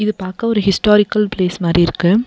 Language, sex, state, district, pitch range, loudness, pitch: Tamil, female, Tamil Nadu, Nilgiris, 180-210 Hz, -15 LUFS, 200 Hz